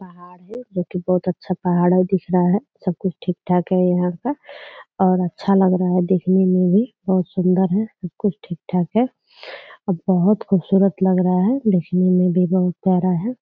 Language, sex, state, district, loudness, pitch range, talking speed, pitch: Hindi, female, Bihar, Purnia, -19 LUFS, 180-195 Hz, 200 wpm, 185 Hz